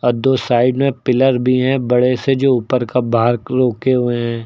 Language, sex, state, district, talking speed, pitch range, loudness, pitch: Hindi, male, Uttar Pradesh, Lucknow, 175 wpm, 120-130 Hz, -15 LUFS, 125 Hz